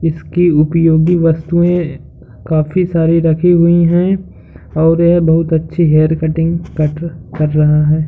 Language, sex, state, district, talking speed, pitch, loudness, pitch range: Hindi, male, Uttar Pradesh, Hamirpur, 135 wpm, 165 Hz, -12 LUFS, 155-170 Hz